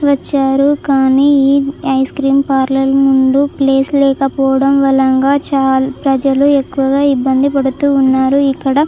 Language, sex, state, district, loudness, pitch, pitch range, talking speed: Telugu, female, Andhra Pradesh, Chittoor, -12 LUFS, 275 Hz, 270-280 Hz, 100 wpm